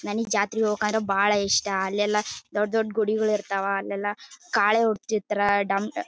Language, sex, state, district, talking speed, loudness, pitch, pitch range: Kannada, female, Karnataka, Bellary, 120 wpm, -24 LUFS, 210 Hz, 200-215 Hz